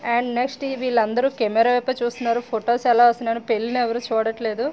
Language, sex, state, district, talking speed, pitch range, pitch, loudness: Telugu, female, Andhra Pradesh, Srikakulam, 150 wpm, 230-245 Hz, 240 Hz, -21 LUFS